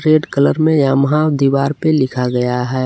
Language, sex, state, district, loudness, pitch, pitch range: Hindi, male, Jharkhand, Palamu, -14 LUFS, 140 Hz, 130-155 Hz